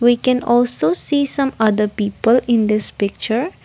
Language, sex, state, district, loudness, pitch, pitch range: English, female, Assam, Kamrup Metropolitan, -17 LUFS, 235 Hz, 210-250 Hz